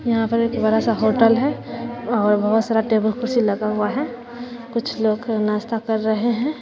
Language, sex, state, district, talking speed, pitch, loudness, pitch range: Hindi, female, Bihar, West Champaran, 190 wpm, 230 Hz, -20 LUFS, 220-240 Hz